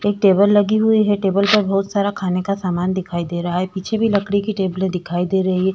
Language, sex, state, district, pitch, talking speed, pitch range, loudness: Hindi, female, Uttar Pradesh, Budaun, 195 Hz, 260 wpm, 185-205 Hz, -18 LUFS